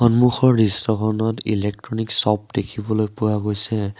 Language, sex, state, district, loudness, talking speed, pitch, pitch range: Assamese, male, Assam, Sonitpur, -20 LUFS, 105 wpm, 110 Hz, 105-110 Hz